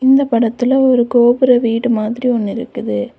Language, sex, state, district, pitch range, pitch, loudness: Tamil, female, Tamil Nadu, Kanyakumari, 230-255 Hz, 240 Hz, -14 LUFS